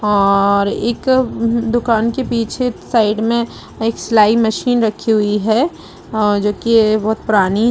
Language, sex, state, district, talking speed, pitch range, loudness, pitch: Hindi, female, Uttar Pradesh, Budaun, 155 wpm, 210-235 Hz, -15 LUFS, 225 Hz